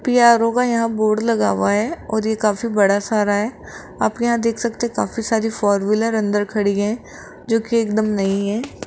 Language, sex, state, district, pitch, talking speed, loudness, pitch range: Hindi, female, Rajasthan, Jaipur, 220 Hz, 190 wpm, -19 LUFS, 205-230 Hz